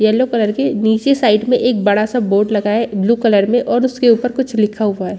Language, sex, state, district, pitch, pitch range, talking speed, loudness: Hindi, female, Chhattisgarh, Bastar, 220 Hz, 210-245 Hz, 255 wpm, -15 LUFS